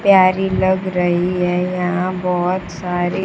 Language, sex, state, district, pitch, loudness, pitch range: Hindi, female, Bihar, Kaimur, 180 Hz, -17 LUFS, 180-185 Hz